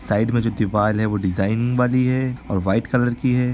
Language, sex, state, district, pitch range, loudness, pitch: Hindi, male, Bihar, East Champaran, 105-125 Hz, -20 LUFS, 115 Hz